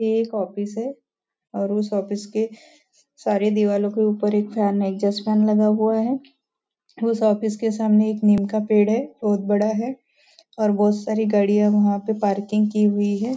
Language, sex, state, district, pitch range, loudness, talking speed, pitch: Hindi, female, Maharashtra, Nagpur, 205-220 Hz, -21 LUFS, 190 wpm, 215 Hz